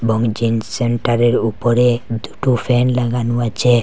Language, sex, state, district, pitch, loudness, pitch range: Bengali, male, Assam, Hailakandi, 120 Hz, -17 LUFS, 115-125 Hz